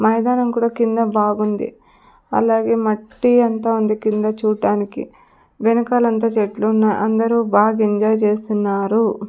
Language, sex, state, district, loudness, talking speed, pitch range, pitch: Telugu, female, Andhra Pradesh, Sri Satya Sai, -17 LUFS, 105 wpm, 210-230 Hz, 220 Hz